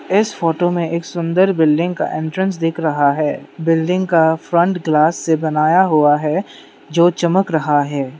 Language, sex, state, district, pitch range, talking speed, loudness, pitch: Hindi, male, Manipur, Imphal West, 155-175 Hz, 170 wpm, -16 LUFS, 165 Hz